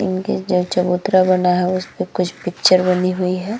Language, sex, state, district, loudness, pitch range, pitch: Hindi, female, Bihar, Vaishali, -17 LUFS, 180-185 Hz, 185 Hz